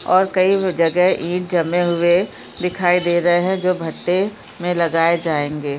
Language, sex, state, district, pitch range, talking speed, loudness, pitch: Hindi, female, Chhattisgarh, Bilaspur, 170-185 Hz, 155 wpm, -18 LUFS, 175 Hz